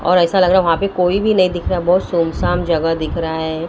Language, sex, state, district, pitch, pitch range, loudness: Hindi, female, Maharashtra, Mumbai Suburban, 175 Hz, 165-185 Hz, -16 LUFS